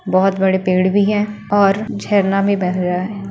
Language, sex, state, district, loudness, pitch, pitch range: Hindi, female, Uttar Pradesh, Etah, -16 LUFS, 195 Hz, 185-200 Hz